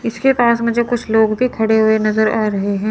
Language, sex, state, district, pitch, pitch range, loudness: Hindi, female, Chandigarh, Chandigarh, 220 Hz, 215-235 Hz, -15 LUFS